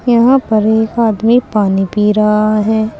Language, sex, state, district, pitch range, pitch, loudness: Hindi, female, Uttar Pradesh, Saharanpur, 210-230 Hz, 215 Hz, -12 LUFS